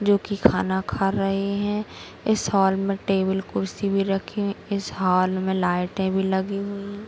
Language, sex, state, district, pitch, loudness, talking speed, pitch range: Hindi, female, Bihar, Kishanganj, 195 Hz, -24 LUFS, 205 wpm, 190-200 Hz